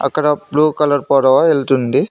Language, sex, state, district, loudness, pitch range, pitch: Telugu, male, Telangana, Mahabubabad, -14 LUFS, 135-150 Hz, 145 Hz